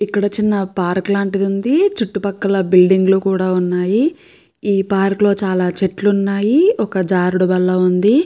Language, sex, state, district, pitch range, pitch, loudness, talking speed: Telugu, female, Andhra Pradesh, Krishna, 185-205 Hz, 195 Hz, -15 LUFS, 140 wpm